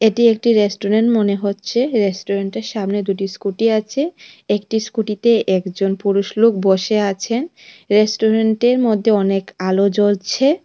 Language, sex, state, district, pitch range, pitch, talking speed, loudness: Bengali, female, Tripura, West Tripura, 200-230 Hz, 215 Hz, 125 wpm, -17 LUFS